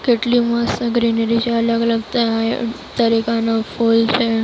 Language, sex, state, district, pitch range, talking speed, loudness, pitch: Gujarati, female, Maharashtra, Mumbai Suburban, 230-235 Hz, 150 wpm, -17 LUFS, 230 Hz